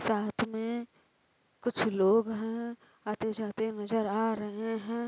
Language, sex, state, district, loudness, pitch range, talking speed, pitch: Hindi, female, Uttar Pradesh, Varanasi, -32 LUFS, 215-230 Hz, 130 wpm, 220 Hz